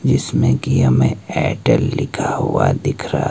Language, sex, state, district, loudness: Hindi, male, Himachal Pradesh, Shimla, -17 LUFS